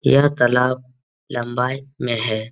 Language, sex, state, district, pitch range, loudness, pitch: Hindi, male, Bihar, Jamui, 120-130 Hz, -20 LUFS, 125 Hz